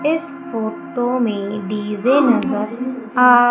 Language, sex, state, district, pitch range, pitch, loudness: Hindi, female, Madhya Pradesh, Umaria, 215-260 Hz, 245 Hz, -18 LUFS